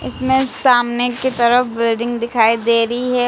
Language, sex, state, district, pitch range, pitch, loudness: Hindi, female, Uttar Pradesh, Lucknow, 235-250 Hz, 240 Hz, -16 LUFS